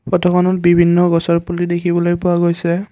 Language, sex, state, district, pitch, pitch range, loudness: Assamese, male, Assam, Kamrup Metropolitan, 175 Hz, 170-175 Hz, -15 LUFS